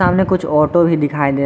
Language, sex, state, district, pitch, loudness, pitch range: Hindi, male, Jharkhand, Garhwa, 165 Hz, -15 LUFS, 145-180 Hz